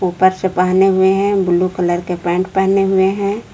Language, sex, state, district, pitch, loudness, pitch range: Hindi, female, Jharkhand, Palamu, 190 Hz, -15 LUFS, 180-195 Hz